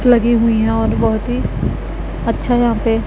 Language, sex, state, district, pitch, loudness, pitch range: Hindi, female, Punjab, Pathankot, 230 Hz, -16 LUFS, 225-240 Hz